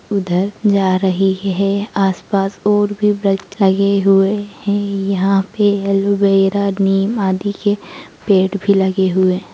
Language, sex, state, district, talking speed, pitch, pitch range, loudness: Hindi, female, Bihar, Begusarai, 140 wpm, 195 Hz, 195-200 Hz, -16 LUFS